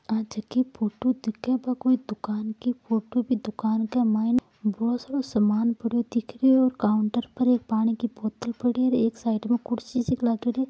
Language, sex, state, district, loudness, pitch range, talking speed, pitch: Marwari, female, Rajasthan, Nagaur, -26 LUFS, 220-250 Hz, 185 wpm, 235 Hz